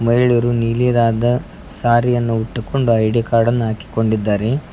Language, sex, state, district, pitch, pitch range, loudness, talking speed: Kannada, male, Karnataka, Koppal, 115 Hz, 115-120 Hz, -17 LUFS, 125 wpm